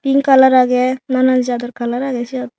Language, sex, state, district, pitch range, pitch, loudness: Chakma, female, Tripura, Unakoti, 245-265 Hz, 255 Hz, -14 LUFS